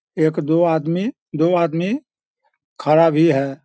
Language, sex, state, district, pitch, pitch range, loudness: Hindi, male, Bihar, Sitamarhi, 165 Hz, 155-175 Hz, -18 LUFS